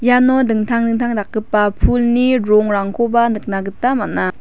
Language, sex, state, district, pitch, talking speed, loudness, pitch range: Garo, female, Meghalaya, West Garo Hills, 230 Hz, 120 wpm, -16 LUFS, 210-240 Hz